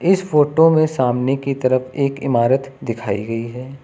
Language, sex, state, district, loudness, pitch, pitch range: Hindi, male, Uttar Pradesh, Lucknow, -18 LUFS, 135 Hz, 125-145 Hz